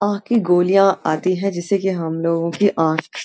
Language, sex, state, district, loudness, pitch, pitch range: Hindi, female, Uttarakhand, Uttarkashi, -18 LUFS, 185 Hz, 165-200 Hz